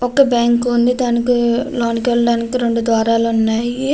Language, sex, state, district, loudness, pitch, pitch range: Telugu, female, Andhra Pradesh, Krishna, -16 LUFS, 235 Hz, 230-245 Hz